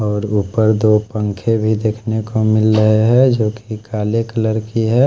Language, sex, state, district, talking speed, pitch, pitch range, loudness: Hindi, male, Odisha, Khordha, 190 wpm, 110 Hz, 105-110 Hz, -16 LUFS